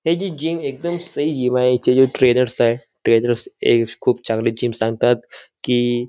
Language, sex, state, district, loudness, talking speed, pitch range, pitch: Marathi, male, Maharashtra, Nagpur, -18 LUFS, 185 wpm, 120-150 Hz, 125 Hz